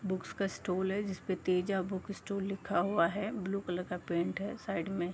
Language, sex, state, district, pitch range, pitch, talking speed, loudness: Hindi, female, Uttar Pradesh, Gorakhpur, 180-200 Hz, 190 Hz, 210 wpm, -35 LUFS